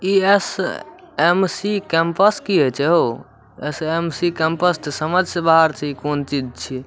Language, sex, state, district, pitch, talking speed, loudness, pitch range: Maithili, male, Bihar, Samastipur, 165 Hz, 165 wpm, -18 LUFS, 145-180 Hz